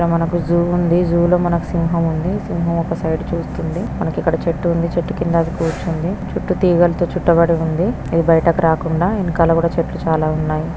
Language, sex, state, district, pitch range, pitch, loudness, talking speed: Telugu, female, Andhra Pradesh, Srikakulam, 165-175 Hz, 170 Hz, -17 LUFS, 180 wpm